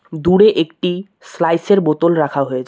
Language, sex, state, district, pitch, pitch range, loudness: Bengali, male, West Bengal, Cooch Behar, 170 Hz, 155-185 Hz, -15 LUFS